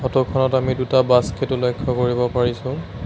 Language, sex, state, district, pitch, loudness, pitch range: Assamese, male, Assam, Sonitpur, 125 Hz, -19 LUFS, 125-130 Hz